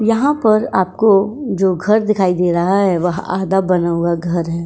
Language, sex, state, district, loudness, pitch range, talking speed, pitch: Hindi, female, Uttar Pradesh, Etah, -15 LUFS, 175-215 Hz, 195 wpm, 190 Hz